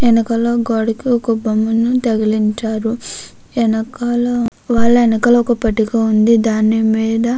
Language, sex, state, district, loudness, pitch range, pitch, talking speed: Telugu, female, Andhra Pradesh, Krishna, -15 LUFS, 220-235 Hz, 230 Hz, 80 wpm